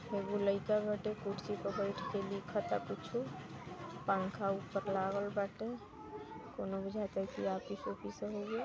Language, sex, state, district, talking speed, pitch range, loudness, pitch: Bhojpuri, female, Uttar Pradesh, Ghazipur, 120 wpm, 195-210 Hz, -39 LUFS, 200 Hz